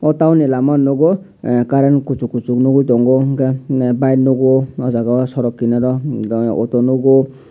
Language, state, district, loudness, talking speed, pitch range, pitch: Kokborok, Tripura, Dhalai, -14 LUFS, 145 wpm, 120-135 Hz, 130 Hz